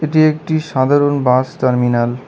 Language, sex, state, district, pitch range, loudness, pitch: Bengali, male, West Bengal, Cooch Behar, 125-155 Hz, -15 LUFS, 140 Hz